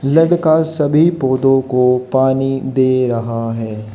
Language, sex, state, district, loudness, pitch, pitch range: Hindi, male, Haryana, Jhajjar, -15 LUFS, 130 Hz, 125-145 Hz